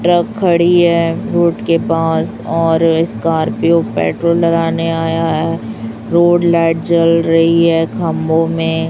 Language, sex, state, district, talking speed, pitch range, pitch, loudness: Hindi, male, Chhattisgarh, Raipur, 135 wpm, 165-170 Hz, 165 Hz, -13 LUFS